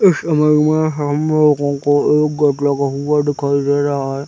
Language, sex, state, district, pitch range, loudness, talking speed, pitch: Hindi, male, Chhattisgarh, Raigarh, 140-150 Hz, -15 LUFS, 210 wpm, 145 Hz